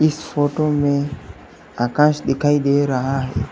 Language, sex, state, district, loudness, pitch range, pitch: Hindi, male, Uttar Pradesh, Lalitpur, -19 LUFS, 135-150 Hz, 145 Hz